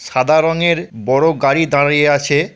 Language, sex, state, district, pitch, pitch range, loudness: Bengali, male, West Bengal, Purulia, 145 Hz, 140-165 Hz, -14 LUFS